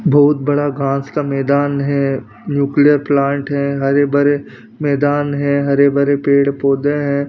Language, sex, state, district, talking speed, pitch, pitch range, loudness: Hindi, male, Punjab, Pathankot, 150 wpm, 140 Hz, 140-145 Hz, -15 LUFS